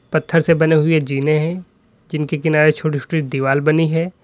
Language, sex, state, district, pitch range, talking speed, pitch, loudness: Hindi, male, Uttar Pradesh, Lalitpur, 150-165 Hz, 185 wpm, 155 Hz, -17 LUFS